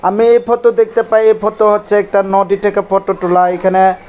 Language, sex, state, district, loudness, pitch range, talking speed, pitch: Bengali, male, Tripura, West Tripura, -12 LUFS, 195-220 Hz, 205 wpm, 205 Hz